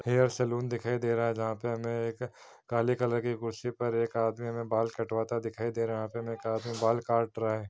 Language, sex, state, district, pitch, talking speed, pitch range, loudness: Hindi, male, Chhattisgarh, Kabirdham, 115 Hz, 250 wpm, 115-120 Hz, -32 LUFS